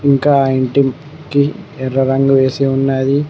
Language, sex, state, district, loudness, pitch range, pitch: Telugu, male, Telangana, Mahabubabad, -14 LUFS, 135-145 Hz, 135 Hz